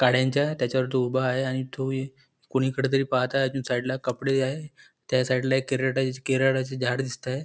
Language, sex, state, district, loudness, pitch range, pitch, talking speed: Marathi, male, Maharashtra, Nagpur, -26 LUFS, 130-135 Hz, 130 Hz, 200 wpm